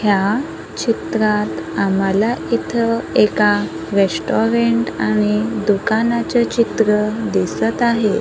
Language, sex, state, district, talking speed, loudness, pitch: Marathi, female, Maharashtra, Gondia, 80 wpm, -17 LUFS, 195 Hz